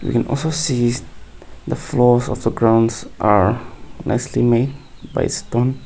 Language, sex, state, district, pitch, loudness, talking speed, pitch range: English, male, Nagaland, Kohima, 120 Hz, -18 LUFS, 135 wpm, 115-135 Hz